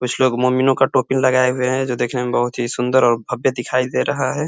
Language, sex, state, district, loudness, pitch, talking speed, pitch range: Hindi, male, Uttar Pradesh, Ghazipur, -18 LUFS, 125 Hz, 270 wpm, 125-130 Hz